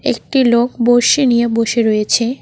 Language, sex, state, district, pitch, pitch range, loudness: Bengali, female, West Bengal, Cooch Behar, 235 Hz, 230-250 Hz, -13 LUFS